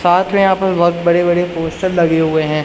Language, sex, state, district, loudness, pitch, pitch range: Hindi, male, Madhya Pradesh, Umaria, -14 LUFS, 175 Hz, 165-185 Hz